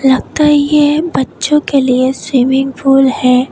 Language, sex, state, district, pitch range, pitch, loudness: Hindi, female, Tripura, West Tripura, 260-295 Hz, 270 Hz, -11 LUFS